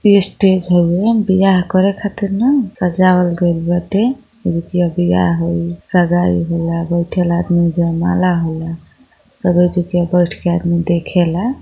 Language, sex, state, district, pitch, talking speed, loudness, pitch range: Hindi, female, Uttar Pradesh, Gorakhpur, 175 Hz, 130 wpm, -15 LUFS, 170-190 Hz